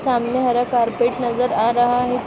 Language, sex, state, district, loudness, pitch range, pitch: Hindi, female, Uttar Pradesh, Jalaun, -18 LUFS, 240-250 Hz, 245 Hz